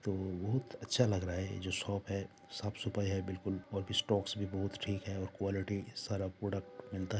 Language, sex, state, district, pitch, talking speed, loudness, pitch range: Hindi, male, Jharkhand, Sahebganj, 100 Hz, 210 wpm, -38 LUFS, 95-105 Hz